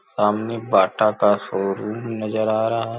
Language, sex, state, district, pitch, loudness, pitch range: Hindi, male, Uttar Pradesh, Gorakhpur, 110 Hz, -21 LUFS, 105-115 Hz